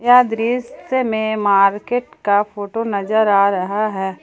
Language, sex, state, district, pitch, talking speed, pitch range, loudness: Hindi, female, Jharkhand, Palamu, 215 Hz, 140 wpm, 200-235 Hz, -17 LUFS